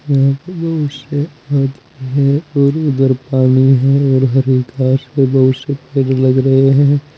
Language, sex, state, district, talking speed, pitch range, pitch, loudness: Hindi, male, Uttar Pradesh, Saharanpur, 165 wpm, 130-145 Hz, 135 Hz, -13 LUFS